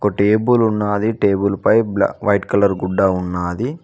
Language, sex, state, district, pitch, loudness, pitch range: Telugu, male, Telangana, Mahabubabad, 100 Hz, -17 LUFS, 95-110 Hz